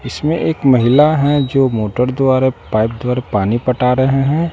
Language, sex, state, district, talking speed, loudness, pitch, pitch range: Hindi, male, Bihar, West Champaran, 170 wpm, -14 LUFS, 130 Hz, 125-140 Hz